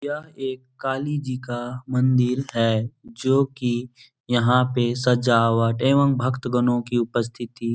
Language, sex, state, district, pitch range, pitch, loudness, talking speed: Hindi, male, Bihar, Jahanabad, 120-130 Hz, 125 Hz, -22 LUFS, 140 wpm